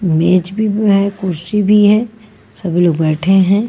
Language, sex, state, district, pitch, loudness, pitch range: Hindi, female, Bihar, Patna, 195 Hz, -13 LUFS, 175-210 Hz